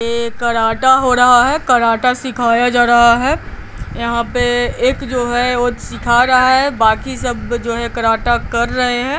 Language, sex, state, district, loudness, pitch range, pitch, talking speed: Hindi, female, Bihar, Patna, -14 LUFS, 235-255 Hz, 245 Hz, 170 wpm